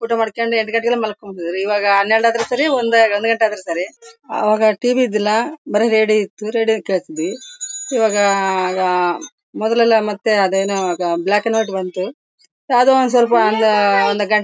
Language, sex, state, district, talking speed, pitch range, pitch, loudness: Kannada, female, Karnataka, Bellary, 160 wpm, 200-230 Hz, 220 Hz, -16 LUFS